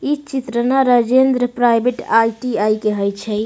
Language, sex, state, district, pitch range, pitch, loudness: Maithili, female, Bihar, Samastipur, 215-255 Hz, 240 Hz, -16 LUFS